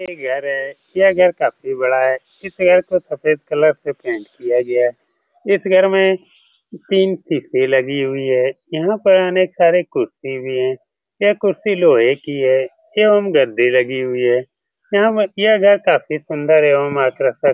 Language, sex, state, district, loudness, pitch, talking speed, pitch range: Hindi, male, Bihar, Saran, -16 LUFS, 170 Hz, 175 wpm, 135-195 Hz